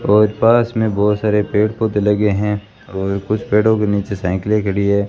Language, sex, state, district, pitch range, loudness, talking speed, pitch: Hindi, female, Rajasthan, Bikaner, 100-105 Hz, -16 LUFS, 200 wpm, 105 Hz